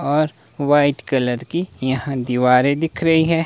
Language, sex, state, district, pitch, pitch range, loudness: Hindi, male, Himachal Pradesh, Shimla, 140 Hz, 130-160 Hz, -18 LUFS